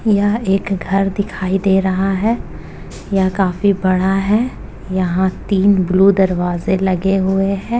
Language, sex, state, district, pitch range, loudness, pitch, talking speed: Hindi, female, Uttar Pradesh, Jalaun, 185-200 Hz, -16 LUFS, 195 Hz, 140 wpm